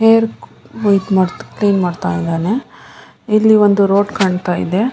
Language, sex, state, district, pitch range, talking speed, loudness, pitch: Kannada, female, Karnataka, Mysore, 185-215 Hz, 110 wpm, -15 LUFS, 200 Hz